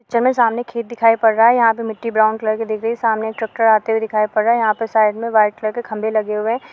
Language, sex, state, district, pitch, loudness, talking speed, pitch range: Hindi, female, Jharkhand, Sahebganj, 225 Hz, -17 LUFS, 295 wpm, 215-230 Hz